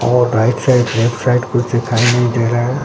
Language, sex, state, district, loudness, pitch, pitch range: Hindi, male, Bihar, Katihar, -14 LUFS, 120 Hz, 120-125 Hz